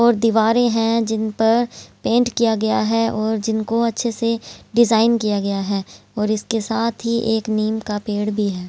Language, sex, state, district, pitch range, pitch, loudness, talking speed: Hindi, female, Haryana, Jhajjar, 215-230 Hz, 225 Hz, -19 LUFS, 180 wpm